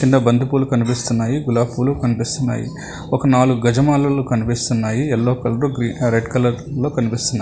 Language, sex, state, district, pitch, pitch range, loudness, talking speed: Telugu, male, Telangana, Hyderabad, 125 Hz, 120-135 Hz, -18 LUFS, 120 wpm